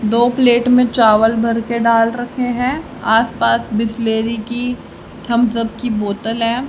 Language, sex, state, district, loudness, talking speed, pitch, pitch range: Hindi, female, Haryana, Charkhi Dadri, -16 LUFS, 150 wpm, 230 Hz, 225-245 Hz